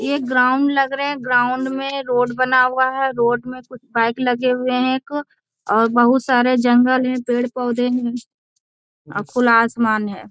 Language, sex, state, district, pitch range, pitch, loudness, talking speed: Hindi, female, Bihar, Jamui, 240-260 Hz, 250 Hz, -18 LUFS, 165 wpm